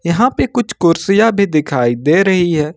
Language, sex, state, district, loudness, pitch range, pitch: Hindi, male, Jharkhand, Ranchi, -13 LUFS, 155-205 Hz, 175 Hz